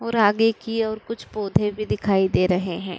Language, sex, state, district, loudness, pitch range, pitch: Hindi, female, Uttar Pradesh, Budaun, -22 LUFS, 190-225 Hz, 210 Hz